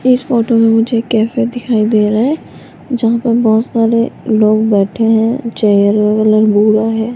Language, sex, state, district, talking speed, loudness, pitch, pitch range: Hindi, female, Rajasthan, Jaipur, 185 wpm, -12 LUFS, 225 Hz, 215-235 Hz